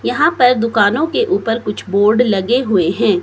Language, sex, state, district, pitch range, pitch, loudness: Hindi, female, Himachal Pradesh, Shimla, 205-250 Hz, 225 Hz, -14 LUFS